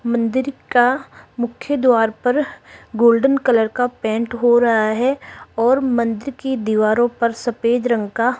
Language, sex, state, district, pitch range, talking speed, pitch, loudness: Hindi, female, Rajasthan, Jaipur, 230-255 Hz, 150 wpm, 240 Hz, -18 LUFS